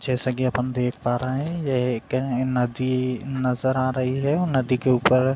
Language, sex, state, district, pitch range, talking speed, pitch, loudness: Hindi, male, Uttar Pradesh, Etah, 125-130 Hz, 225 wpm, 130 Hz, -23 LUFS